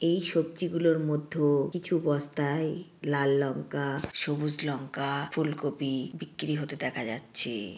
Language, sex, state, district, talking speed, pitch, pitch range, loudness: Bengali, female, West Bengal, Jhargram, 110 wpm, 150 Hz, 140-165 Hz, -30 LUFS